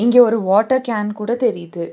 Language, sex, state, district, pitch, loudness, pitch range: Tamil, female, Tamil Nadu, Nilgiris, 225 Hz, -17 LUFS, 205-240 Hz